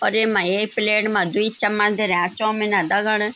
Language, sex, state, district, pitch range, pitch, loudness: Garhwali, female, Uttarakhand, Tehri Garhwal, 200-215 Hz, 210 Hz, -19 LUFS